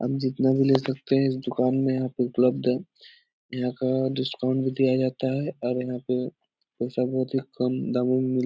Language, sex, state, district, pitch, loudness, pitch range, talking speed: Hindi, male, Bihar, Jahanabad, 130 Hz, -25 LUFS, 125-135 Hz, 210 wpm